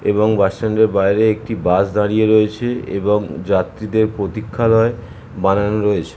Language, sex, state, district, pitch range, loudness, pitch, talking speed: Bengali, male, West Bengal, North 24 Parganas, 100-110 Hz, -17 LUFS, 105 Hz, 135 wpm